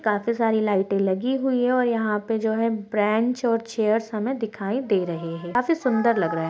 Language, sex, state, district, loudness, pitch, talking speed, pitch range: Hindi, female, Chhattisgarh, Balrampur, -23 LUFS, 220 Hz, 220 wpm, 205-240 Hz